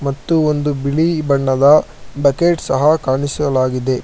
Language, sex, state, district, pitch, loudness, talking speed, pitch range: Kannada, male, Karnataka, Bangalore, 140 Hz, -15 LUFS, 105 wpm, 135-150 Hz